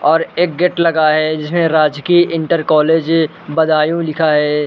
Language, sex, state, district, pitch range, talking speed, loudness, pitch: Hindi, male, Uttar Pradesh, Budaun, 155-170 Hz, 155 wpm, -14 LUFS, 160 Hz